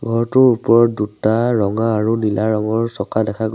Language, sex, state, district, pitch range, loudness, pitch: Assamese, male, Assam, Sonitpur, 110-115 Hz, -16 LUFS, 110 Hz